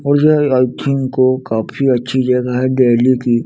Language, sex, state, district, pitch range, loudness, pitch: Hindi, male, Chandigarh, Chandigarh, 125-135 Hz, -14 LUFS, 130 Hz